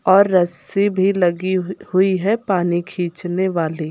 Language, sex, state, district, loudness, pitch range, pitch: Hindi, female, Uttar Pradesh, Lucknow, -18 LUFS, 175-190 Hz, 185 Hz